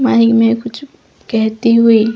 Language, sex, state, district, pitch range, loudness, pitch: Hindi, female, Chhattisgarh, Bastar, 225-240 Hz, -12 LUFS, 230 Hz